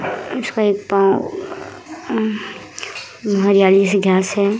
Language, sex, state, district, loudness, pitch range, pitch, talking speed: Hindi, female, Uttar Pradesh, Muzaffarnagar, -17 LUFS, 195-240 Hz, 205 Hz, 50 wpm